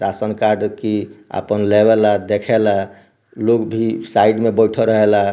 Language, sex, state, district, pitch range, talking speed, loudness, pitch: Bhojpuri, male, Bihar, Muzaffarpur, 105-110 Hz, 155 wpm, -16 LUFS, 105 Hz